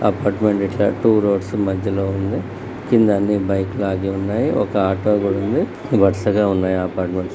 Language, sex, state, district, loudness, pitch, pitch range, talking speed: Telugu, male, Andhra Pradesh, Guntur, -19 LUFS, 100 Hz, 95-105 Hz, 145 wpm